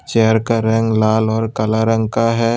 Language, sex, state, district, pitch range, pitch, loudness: Hindi, male, Tripura, West Tripura, 110-115 Hz, 110 Hz, -16 LUFS